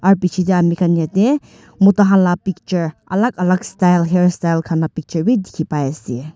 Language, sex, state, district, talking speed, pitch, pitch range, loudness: Nagamese, female, Nagaland, Dimapur, 190 wpm, 180 Hz, 165-190 Hz, -16 LUFS